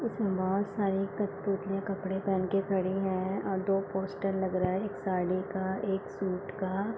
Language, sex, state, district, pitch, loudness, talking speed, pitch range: Hindi, female, Bihar, Gopalganj, 195 Hz, -32 LUFS, 180 wpm, 190-195 Hz